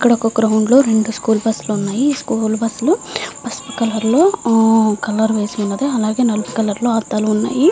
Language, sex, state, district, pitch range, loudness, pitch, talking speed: Telugu, female, Andhra Pradesh, Visakhapatnam, 215-245 Hz, -16 LUFS, 225 Hz, 200 wpm